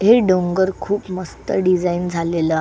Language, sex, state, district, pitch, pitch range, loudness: Marathi, female, Maharashtra, Solapur, 185 Hz, 175-190 Hz, -19 LUFS